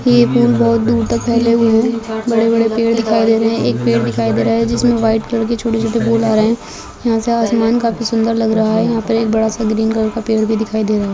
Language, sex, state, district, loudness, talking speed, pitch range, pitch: Hindi, female, Bihar, Bhagalpur, -14 LUFS, 285 wpm, 215-230 Hz, 225 Hz